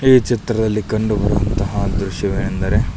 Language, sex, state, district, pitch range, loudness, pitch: Kannada, male, Karnataka, Belgaum, 100-110 Hz, -18 LUFS, 105 Hz